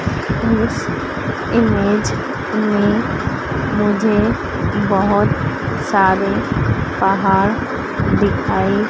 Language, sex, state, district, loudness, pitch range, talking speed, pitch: Hindi, female, Madhya Pradesh, Dhar, -17 LUFS, 195-210 Hz, 55 wpm, 210 Hz